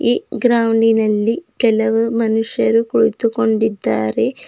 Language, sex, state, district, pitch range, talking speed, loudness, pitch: Kannada, female, Karnataka, Bidar, 220-230 Hz, 80 wpm, -16 LUFS, 225 Hz